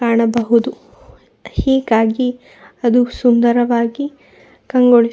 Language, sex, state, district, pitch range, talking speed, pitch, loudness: Kannada, female, Karnataka, Shimoga, 235-250 Hz, 60 wpm, 240 Hz, -15 LUFS